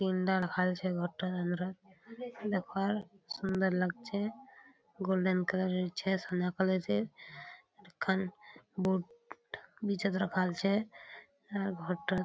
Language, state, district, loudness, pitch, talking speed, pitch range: Surjapuri, Bihar, Kishanganj, -34 LUFS, 190 Hz, 120 wpm, 180-200 Hz